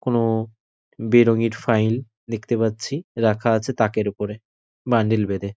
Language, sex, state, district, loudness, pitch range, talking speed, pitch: Bengali, male, West Bengal, North 24 Parganas, -21 LUFS, 110-115 Hz, 120 wpm, 110 Hz